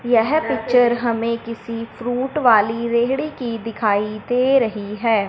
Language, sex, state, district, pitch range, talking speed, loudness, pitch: Hindi, male, Punjab, Fazilka, 225-245 Hz, 135 wpm, -19 LUFS, 235 Hz